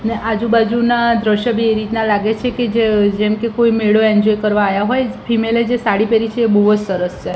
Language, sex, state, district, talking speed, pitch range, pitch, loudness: Gujarati, female, Gujarat, Gandhinagar, 210 wpm, 210-230 Hz, 225 Hz, -15 LUFS